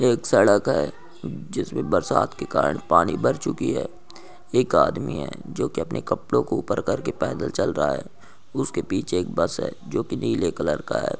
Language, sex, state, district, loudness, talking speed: Hindi, male, Bihar, Saharsa, -24 LUFS, 195 wpm